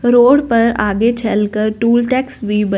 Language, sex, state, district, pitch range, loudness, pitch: Hindi, female, Punjab, Fazilka, 210-240 Hz, -14 LUFS, 230 Hz